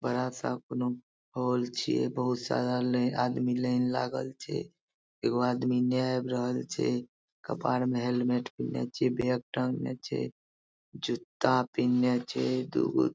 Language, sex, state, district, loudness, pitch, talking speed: Maithili, male, Bihar, Madhepura, -31 LUFS, 125 Hz, 135 wpm